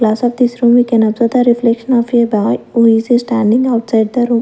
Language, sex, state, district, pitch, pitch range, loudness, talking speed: English, female, Punjab, Fazilka, 235 Hz, 225-245 Hz, -12 LUFS, 245 wpm